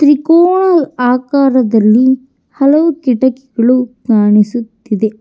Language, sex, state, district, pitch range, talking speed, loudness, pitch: Kannada, female, Karnataka, Bangalore, 230-285 Hz, 60 wpm, -11 LUFS, 255 Hz